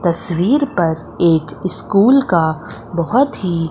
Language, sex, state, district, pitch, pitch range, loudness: Hindi, female, Madhya Pradesh, Umaria, 175 Hz, 165-200 Hz, -16 LUFS